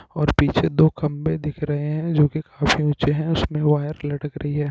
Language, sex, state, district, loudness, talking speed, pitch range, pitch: Hindi, male, Uttarakhand, Tehri Garhwal, -21 LUFS, 240 wpm, 145-155 Hz, 150 Hz